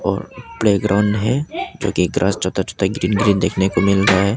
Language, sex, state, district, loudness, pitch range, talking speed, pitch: Hindi, male, Arunachal Pradesh, Papum Pare, -18 LUFS, 95-105 Hz, 205 wpm, 100 Hz